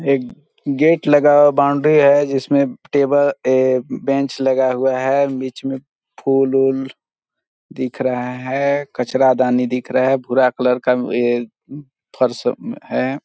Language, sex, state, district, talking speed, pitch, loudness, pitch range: Hindi, male, Chhattisgarh, Balrampur, 140 wpm, 135 Hz, -17 LUFS, 130-140 Hz